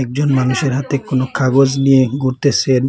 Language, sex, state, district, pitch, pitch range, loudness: Bengali, male, Assam, Hailakandi, 135 Hz, 130-135 Hz, -15 LUFS